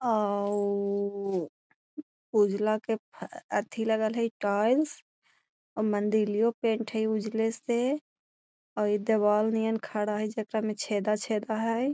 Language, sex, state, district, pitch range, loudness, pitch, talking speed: Magahi, female, Bihar, Gaya, 210-225 Hz, -29 LUFS, 220 Hz, 110 wpm